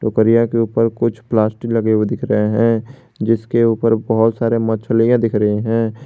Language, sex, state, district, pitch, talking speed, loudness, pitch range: Hindi, male, Jharkhand, Garhwa, 115 Hz, 180 wpm, -16 LUFS, 110-115 Hz